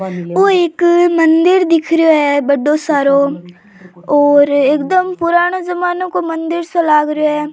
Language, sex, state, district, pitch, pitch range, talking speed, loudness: Rajasthani, female, Rajasthan, Churu, 320 Hz, 285-350 Hz, 145 wpm, -13 LUFS